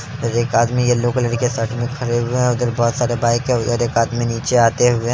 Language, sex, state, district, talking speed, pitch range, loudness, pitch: Hindi, male, Bihar, Araria, 255 wpm, 115-125 Hz, -18 LUFS, 120 Hz